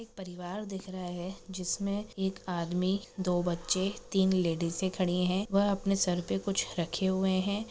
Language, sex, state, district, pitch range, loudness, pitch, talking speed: Hindi, female, Maharashtra, Sindhudurg, 180-195 Hz, -31 LUFS, 190 Hz, 165 wpm